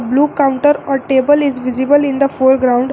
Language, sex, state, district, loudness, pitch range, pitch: English, female, Jharkhand, Garhwa, -13 LUFS, 260-285 Hz, 275 Hz